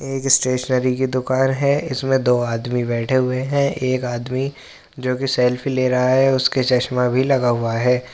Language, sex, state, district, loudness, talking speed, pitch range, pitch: Hindi, male, Uttar Pradesh, Jyotiba Phule Nagar, -19 LUFS, 175 wpm, 125-135 Hz, 130 Hz